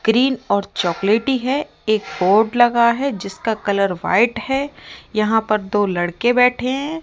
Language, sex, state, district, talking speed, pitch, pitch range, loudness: Hindi, female, Rajasthan, Jaipur, 155 wpm, 225 Hz, 200-250 Hz, -18 LUFS